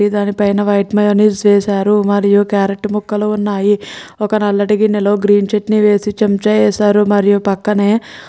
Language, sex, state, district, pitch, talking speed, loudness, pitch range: Telugu, female, Andhra Pradesh, Srikakulam, 205 Hz, 145 wpm, -13 LUFS, 205-210 Hz